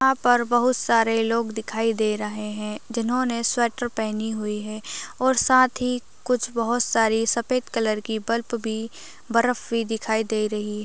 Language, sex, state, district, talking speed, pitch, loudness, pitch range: Hindi, female, Uttar Pradesh, Ghazipur, 170 wpm, 230 Hz, -23 LUFS, 220-245 Hz